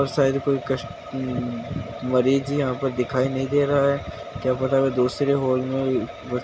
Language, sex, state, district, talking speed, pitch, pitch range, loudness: Hindi, male, Bihar, Jahanabad, 195 wpm, 135 Hz, 125-140 Hz, -23 LUFS